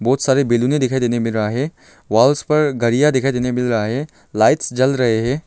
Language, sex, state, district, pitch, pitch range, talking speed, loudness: Hindi, male, Arunachal Pradesh, Longding, 130 Hz, 120-140 Hz, 220 wpm, -17 LUFS